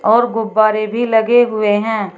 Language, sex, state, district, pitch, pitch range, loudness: Hindi, female, Uttar Pradesh, Shamli, 220 Hz, 215-230 Hz, -14 LUFS